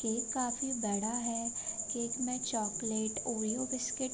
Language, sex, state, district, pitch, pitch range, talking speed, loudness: Hindi, female, Maharashtra, Aurangabad, 235 Hz, 225-250 Hz, 145 wpm, -33 LUFS